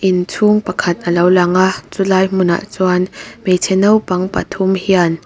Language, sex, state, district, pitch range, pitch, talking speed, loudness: Mizo, female, Mizoram, Aizawl, 180-190 Hz, 185 Hz, 135 wpm, -14 LUFS